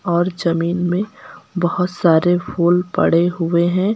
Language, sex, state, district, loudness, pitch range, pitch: Hindi, female, Uttar Pradesh, Lucknow, -17 LUFS, 170-180 Hz, 175 Hz